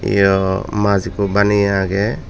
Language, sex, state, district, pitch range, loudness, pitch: Chakma, male, Tripura, Dhalai, 95-105 Hz, -16 LUFS, 100 Hz